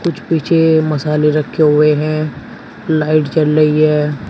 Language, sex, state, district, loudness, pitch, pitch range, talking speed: Hindi, male, Uttar Pradesh, Shamli, -13 LUFS, 155 Hz, 150-155 Hz, 140 wpm